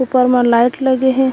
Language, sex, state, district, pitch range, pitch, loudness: Chhattisgarhi, female, Chhattisgarh, Korba, 245-260 Hz, 255 Hz, -13 LUFS